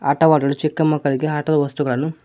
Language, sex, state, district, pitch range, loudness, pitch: Kannada, male, Karnataka, Koppal, 140-155 Hz, -18 LUFS, 150 Hz